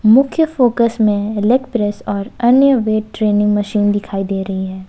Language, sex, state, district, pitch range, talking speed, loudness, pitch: Hindi, female, Jharkhand, Ranchi, 205-240 Hz, 170 wpm, -15 LUFS, 210 Hz